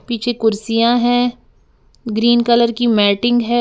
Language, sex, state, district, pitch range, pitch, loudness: Hindi, female, Uttar Pradesh, Lalitpur, 225-240 Hz, 235 Hz, -15 LUFS